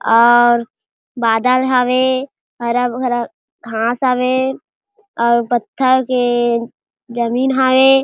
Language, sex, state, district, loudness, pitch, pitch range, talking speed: Chhattisgarhi, female, Chhattisgarh, Jashpur, -15 LUFS, 250 Hz, 235-260 Hz, 95 wpm